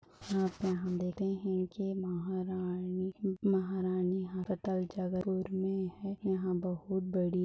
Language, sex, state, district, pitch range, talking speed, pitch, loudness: Hindi, female, Chhattisgarh, Bastar, 185-190 Hz, 120 wpm, 185 Hz, -35 LUFS